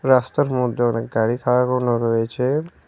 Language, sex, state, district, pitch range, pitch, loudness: Bengali, male, West Bengal, Cooch Behar, 115-130 Hz, 125 Hz, -20 LUFS